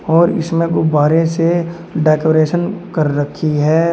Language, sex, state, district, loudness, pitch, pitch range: Hindi, male, Uttar Pradesh, Shamli, -15 LUFS, 165 Hz, 155-170 Hz